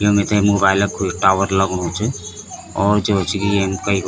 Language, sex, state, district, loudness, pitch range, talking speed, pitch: Garhwali, male, Uttarakhand, Tehri Garhwal, -17 LUFS, 95-100 Hz, 220 wpm, 100 Hz